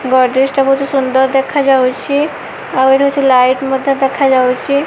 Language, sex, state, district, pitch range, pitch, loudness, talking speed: Odia, female, Odisha, Malkangiri, 260-275 Hz, 270 Hz, -12 LUFS, 160 wpm